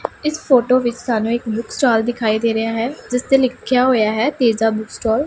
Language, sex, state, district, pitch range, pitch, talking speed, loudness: Punjabi, female, Punjab, Pathankot, 225-255 Hz, 240 Hz, 225 wpm, -17 LUFS